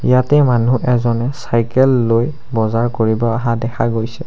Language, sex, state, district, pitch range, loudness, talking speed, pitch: Assamese, male, Assam, Sonitpur, 115-125 Hz, -15 LUFS, 140 wpm, 120 Hz